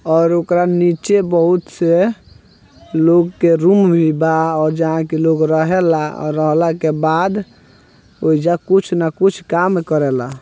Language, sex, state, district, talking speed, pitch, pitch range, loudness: Bhojpuri, male, Bihar, Gopalganj, 145 wpm, 165 Hz, 160-175 Hz, -15 LUFS